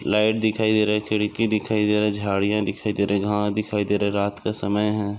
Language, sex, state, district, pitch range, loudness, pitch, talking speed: Hindi, male, Maharashtra, Aurangabad, 100-105 Hz, -22 LUFS, 105 Hz, 220 wpm